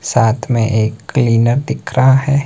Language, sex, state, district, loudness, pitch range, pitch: Hindi, male, Himachal Pradesh, Shimla, -14 LUFS, 115-130 Hz, 120 Hz